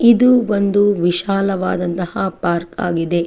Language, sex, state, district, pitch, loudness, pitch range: Kannada, female, Karnataka, Chamarajanagar, 190 Hz, -16 LUFS, 175-205 Hz